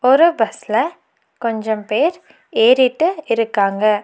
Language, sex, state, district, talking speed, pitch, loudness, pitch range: Tamil, female, Tamil Nadu, Nilgiris, 90 wpm, 235 Hz, -17 LUFS, 220-315 Hz